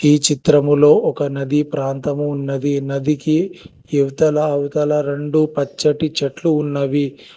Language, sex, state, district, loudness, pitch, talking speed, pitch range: Telugu, male, Telangana, Hyderabad, -17 LUFS, 145 Hz, 105 wpm, 140-150 Hz